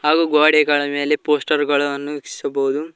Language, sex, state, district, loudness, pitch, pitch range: Kannada, male, Karnataka, Koppal, -18 LUFS, 145 Hz, 145-150 Hz